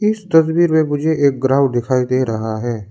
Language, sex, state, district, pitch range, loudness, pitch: Hindi, male, Arunachal Pradesh, Lower Dibang Valley, 125-160 Hz, -16 LUFS, 140 Hz